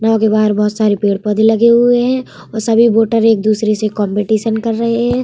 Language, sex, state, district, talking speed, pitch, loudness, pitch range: Hindi, female, Bihar, Vaishali, 230 wpm, 220 Hz, -13 LUFS, 215-230 Hz